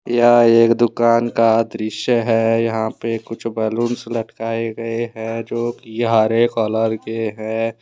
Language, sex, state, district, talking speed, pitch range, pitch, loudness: Hindi, male, Jharkhand, Deoghar, 145 wpm, 110-115 Hz, 115 Hz, -18 LUFS